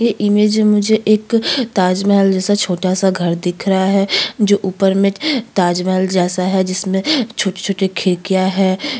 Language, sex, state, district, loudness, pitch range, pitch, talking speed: Hindi, female, Chhattisgarh, Sukma, -15 LUFS, 185-210 Hz, 195 Hz, 155 wpm